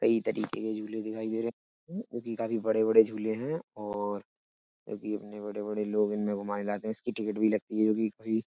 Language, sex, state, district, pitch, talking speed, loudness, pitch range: Hindi, male, Uttar Pradesh, Etah, 110 Hz, 220 wpm, -31 LUFS, 105-110 Hz